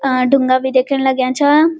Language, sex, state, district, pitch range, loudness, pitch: Garhwali, female, Uttarakhand, Uttarkashi, 255-275 Hz, -14 LUFS, 265 Hz